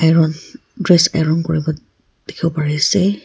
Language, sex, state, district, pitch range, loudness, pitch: Nagamese, female, Nagaland, Kohima, 155-170 Hz, -16 LUFS, 165 Hz